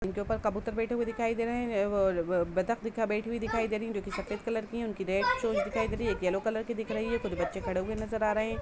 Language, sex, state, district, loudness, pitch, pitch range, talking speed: Hindi, female, Uttar Pradesh, Budaun, -31 LUFS, 220 Hz, 200-230 Hz, 260 wpm